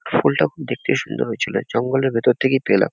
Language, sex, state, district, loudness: Bengali, male, West Bengal, Kolkata, -20 LUFS